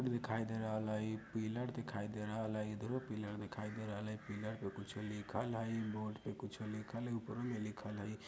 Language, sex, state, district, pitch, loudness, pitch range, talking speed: Bajjika, male, Bihar, Vaishali, 110 Hz, -43 LUFS, 105-115 Hz, 210 wpm